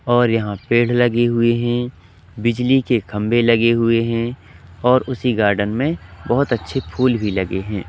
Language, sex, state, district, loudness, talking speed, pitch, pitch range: Hindi, male, Madhya Pradesh, Katni, -18 LUFS, 165 wpm, 115 Hz, 100-120 Hz